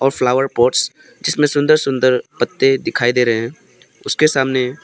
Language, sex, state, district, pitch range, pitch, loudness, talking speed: Hindi, male, Arunachal Pradesh, Papum Pare, 125-150 Hz, 135 Hz, -16 LUFS, 160 wpm